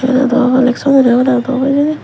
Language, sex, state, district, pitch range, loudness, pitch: Chakma, female, Tripura, West Tripura, 255-270 Hz, -11 LUFS, 260 Hz